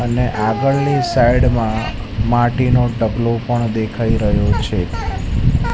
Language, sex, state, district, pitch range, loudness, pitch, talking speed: Gujarati, male, Gujarat, Gandhinagar, 110-120 Hz, -17 LUFS, 115 Hz, 105 wpm